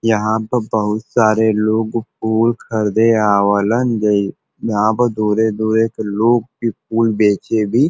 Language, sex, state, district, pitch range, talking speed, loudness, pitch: Bhojpuri, male, Uttar Pradesh, Varanasi, 105-115 Hz, 135 wpm, -16 LUFS, 110 Hz